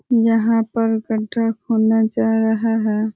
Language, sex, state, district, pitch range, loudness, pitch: Hindi, female, Uttar Pradesh, Ghazipur, 220-230 Hz, -18 LUFS, 225 Hz